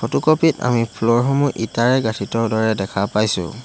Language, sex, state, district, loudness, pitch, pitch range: Assamese, male, Assam, Hailakandi, -18 LUFS, 115 Hz, 110-125 Hz